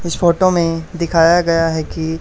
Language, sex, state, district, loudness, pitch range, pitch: Hindi, male, Haryana, Charkhi Dadri, -15 LUFS, 165-170 Hz, 170 Hz